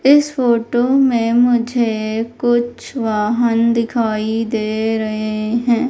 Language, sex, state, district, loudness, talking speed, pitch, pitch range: Hindi, female, Madhya Pradesh, Umaria, -17 LUFS, 100 wpm, 235 Hz, 220-240 Hz